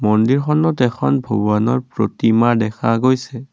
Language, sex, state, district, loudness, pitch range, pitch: Assamese, male, Assam, Kamrup Metropolitan, -17 LUFS, 110-130 Hz, 120 Hz